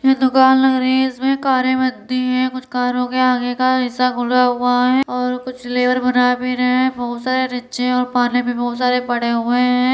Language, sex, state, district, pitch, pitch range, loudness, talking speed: Hindi, female, Uttar Pradesh, Deoria, 250 Hz, 250-255 Hz, -17 LUFS, 215 wpm